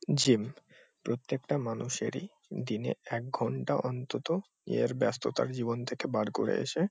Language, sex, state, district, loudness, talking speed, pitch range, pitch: Bengali, male, West Bengal, Kolkata, -33 LUFS, 120 wpm, 115-145 Hz, 125 Hz